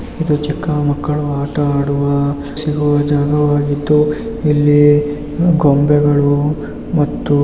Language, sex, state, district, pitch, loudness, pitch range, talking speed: Kannada, male, Karnataka, Raichur, 145 Hz, -15 LUFS, 145-150 Hz, 95 wpm